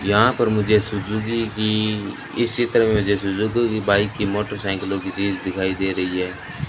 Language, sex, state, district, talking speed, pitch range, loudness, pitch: Hindi, male, Rajasthan, Bikaner, 170 wpm, 95-110 Hz, -21 LUFS, 105 Hz